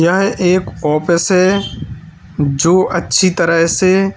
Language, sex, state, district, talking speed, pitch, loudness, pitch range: Hindi, male, Uttar Pradesh, Lalitpur, 115 wpm, 180 Hz, -13 LUFS, 165-185 Hz